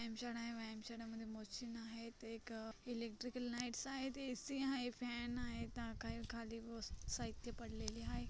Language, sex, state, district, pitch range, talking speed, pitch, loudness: Marathi, female, Maharashtra, Solapur, 225-245 Hz, 135 wpm, 230 Hz, -47 LUFS